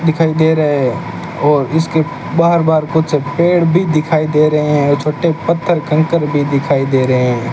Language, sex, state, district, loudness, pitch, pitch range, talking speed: Hindi, male, Rajasthan, Bikaner, -14 LUFS, 155 Hz, 145-165 Hz, 185 wpm